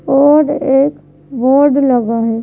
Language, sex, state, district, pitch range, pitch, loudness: Hindi, female, Madhya Pradesh, Bhopal, 250-285 Hz, 270 Hz, -12 LUFS